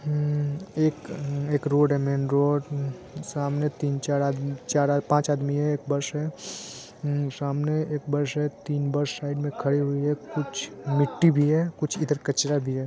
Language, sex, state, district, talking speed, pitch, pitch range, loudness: Hindi, male, Bihar, Saran, 180 wpm, 145 Hz, 140-150 Hz, -26 LUFS